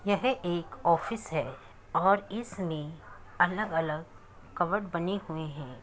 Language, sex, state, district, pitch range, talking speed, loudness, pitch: Hindi, female, Uttar Pradesh, Muzaffarnagar, 155-200 Hz, 115 wpm, -31 LUFS, 170 Hz